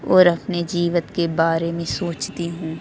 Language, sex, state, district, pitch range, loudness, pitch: Hindi, female, Delhi, New Delhi, 165-175 Hz, -21 LUFS, 170 Hz